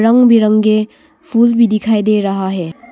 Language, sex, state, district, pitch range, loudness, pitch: Hindi, female, Arunachal Pradesh, Longding, 215-235 Hz, -12 LUFS, 215 Hz